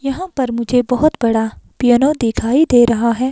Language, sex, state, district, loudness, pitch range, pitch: Hindi, female, Himachal Pradesh, Shimla, -15 LUFS, 235-275 Hz, 245 Hz